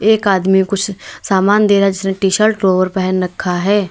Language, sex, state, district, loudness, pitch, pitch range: Hindi, female, Uttar Pradesh, Lalitpur, -14 LUFS, 195 Hz, 190-205 Hz